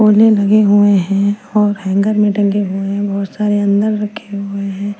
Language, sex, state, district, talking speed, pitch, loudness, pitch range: Hindi, female, Punjab, Kapurthala, 180 wpm, 205 Hz, -14 LUFS, 200-210 Hz